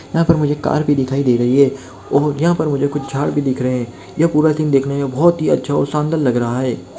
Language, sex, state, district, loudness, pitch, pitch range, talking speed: Hindi, male, Jharkhand, Jamtara, -16 LUFS, 140 Hz, 130-155 Hz, 275 wpm